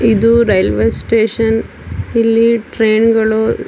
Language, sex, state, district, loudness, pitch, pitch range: Kannada, female, Karnataka, Dakshina Kannada, -13 LUFS, 225 Hz, 220-230 Hz